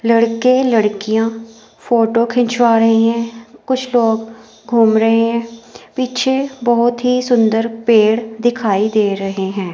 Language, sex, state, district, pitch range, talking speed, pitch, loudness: Hindi, female, Himachal Pradesh, Shimla, 225-240 Hz, 125 wpm, 230 Hz, -15 LUFS